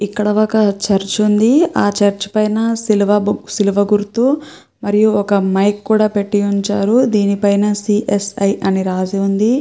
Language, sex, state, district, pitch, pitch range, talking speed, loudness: Telugu, female, Andhra Pradesh, Chittoor, 205 Hz, 200-215 Hz, 135 wpm, -15 LUFS